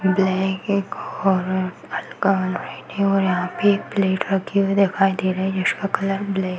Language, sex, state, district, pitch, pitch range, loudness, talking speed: Hindi, female, Uttar Pradesh, Varanasi, 190 Hz, 185-195 Hz, -21 LUFS, 190 wpm